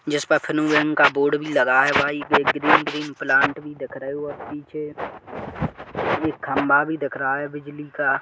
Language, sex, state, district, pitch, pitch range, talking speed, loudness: Hindi, male, Chhattisgarh, Sarguja, 145 Hz, 140-150 Hz, 180 wpm, -21 LUFS